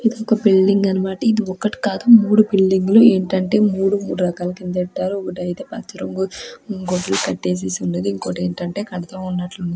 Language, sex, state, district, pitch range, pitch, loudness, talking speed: Telugu, female, Andhra Pradesh, Krishna, 180-205 Hz, 190 Hz, -18 LUFS, 160 wpm